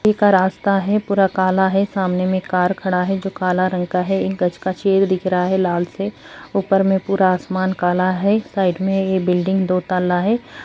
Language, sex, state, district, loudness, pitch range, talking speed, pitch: Hindi, female, Uttarakhand, Uttarkashi, -18 LUFS, 185-195 Hz, 230 wpm, 190 Hz